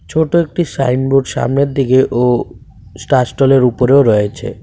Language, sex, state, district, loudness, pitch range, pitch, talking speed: Bengali, male, Tripura, West Tripura, -13 LUFS, 120-140 Hz, 130 Hz, 140 wpm